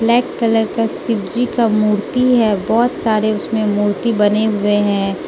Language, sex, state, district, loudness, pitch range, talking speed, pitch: Hindi, female, Mizoram, Aizawl, -16 LUFS, 205-230 Hz, 160 wpm, 220 Hz